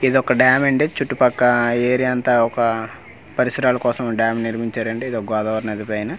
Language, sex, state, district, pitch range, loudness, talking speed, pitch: Telugu, male, Andhra Pradesh, Manyam, 115-125 Hz, -19 LUFS, 175 wpm, 120 Hz